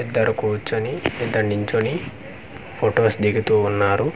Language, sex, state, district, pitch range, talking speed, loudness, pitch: Telugu, male, Andhra Pradesh, Manyam, 105-110 Hz, 100 wpm, -21 LUFS, 105 Hz